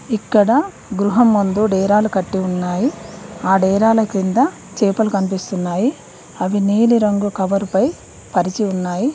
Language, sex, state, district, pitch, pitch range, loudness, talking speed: Telugu, female, Telangana, Mahabubabad, 205 Hz, 190-220 Hz, -17 LUFS, 110 wpm